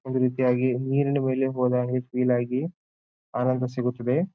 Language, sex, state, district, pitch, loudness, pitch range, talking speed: Kannada, male, Karnataka, Bijapur, 125 Hz, -25 LUFS, 125-130 Hz, 125 wpm